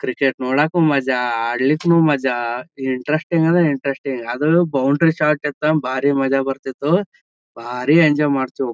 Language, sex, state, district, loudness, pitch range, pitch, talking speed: Kannada, male, Karnataka, Gulbarga, -18 LUFS, 130-155 Hz, 140 Hz, 130 wpm